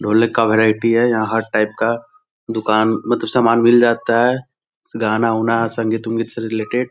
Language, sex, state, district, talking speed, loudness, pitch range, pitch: Hindi, male, Bihar, Sitamarhi, 190 wpm, -17 LUFS, 110-115 Hz, 115 Hz